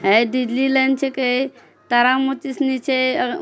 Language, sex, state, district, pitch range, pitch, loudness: Angika, female, Bihar, Bhagalpur, 255-270 Hz, 260 Hz, -19 LUFS